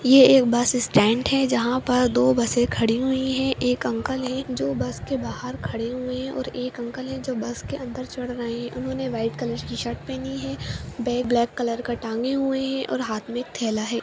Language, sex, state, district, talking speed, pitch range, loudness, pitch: Hindi, female, Bihar, Jahanabad, 225 wpm, 225-255 Hz, -24 LUFS, 245 Hz